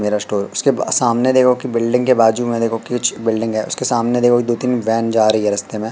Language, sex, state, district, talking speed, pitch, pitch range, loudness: Hindi, male, Madhya Pradesh, Katni, 255 wpm, 115 Hz, 110-120 Hz, -16 LUFS